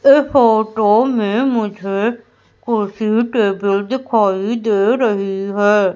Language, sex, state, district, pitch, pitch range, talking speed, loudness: Hindi, female, Madhya Pradesh, Umaria, 220 Hz, 200-235 Hz, 90 wpm, -16 LUFS